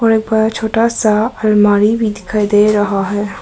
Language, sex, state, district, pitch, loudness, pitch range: Hindi, male, Arunachal Pradesh, Papum Pare, 215 Hz, -13 LUFS, 205-220 Hz